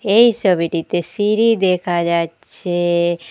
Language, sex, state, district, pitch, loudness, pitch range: Bengali, female, Assam, Hailakandi, 175 Hz, -17 LUFS, 170-205 Hz